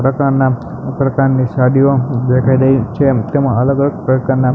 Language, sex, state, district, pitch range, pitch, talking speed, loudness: Gujarati, male, Gujarat, Gandhinagar, 125-135 Hz, 135 Hz, 130 wpm, -13 LUFS